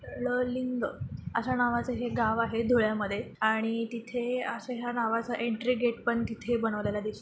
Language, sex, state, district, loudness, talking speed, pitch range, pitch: Marathi, female, Maharashtra, Dhule, -30 LUFS, 160 wpm, 225-245 Hz, 235 Hz